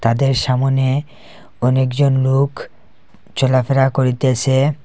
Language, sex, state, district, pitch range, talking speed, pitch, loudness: Bengali, male, Assam, Hailakandi, 130-135 Hz, 85 wpm, 130 Hz, -16 LUFS